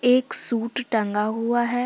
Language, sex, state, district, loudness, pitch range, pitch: Hindi, female, Jharkhand, Deoghar, -17 LUFS, 220-245 Hz, 235 Hz